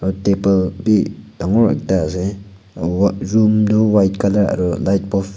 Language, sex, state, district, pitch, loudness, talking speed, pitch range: Nagamese, male, Nagaland, Kohima, 100 Hz, -17 LUFS, 155 wpm, 95-100 Hz